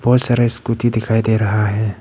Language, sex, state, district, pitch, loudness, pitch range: Hindi, male, Arunachal Pradesh, Papum Pare, 115 Hz, -16 LUFS, 110-120 Hz